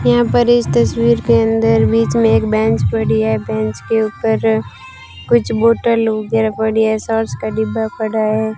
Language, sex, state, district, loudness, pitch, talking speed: Hindi, female, Rajasthan, Bikaner, -15 LUFS, 120 Hz, 175 wpm